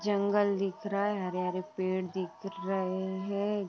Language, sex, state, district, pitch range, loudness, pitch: Hindi, female, Uttar Pradesh, Deoria, 185-200 Hz, -32 LUFS, 195 Hz